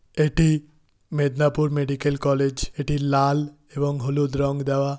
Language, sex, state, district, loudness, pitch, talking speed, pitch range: Bengali, male, West Bengal, Paschim Medinipur, -23 LUFS, 145 Hz, 120 wpm, 140-150 Hz